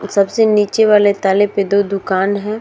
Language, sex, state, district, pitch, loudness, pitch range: Hindi, female, Uttar Pradesh, Muzaffarnagar, 205 Hz, -14 LUFS, 200-210 Hz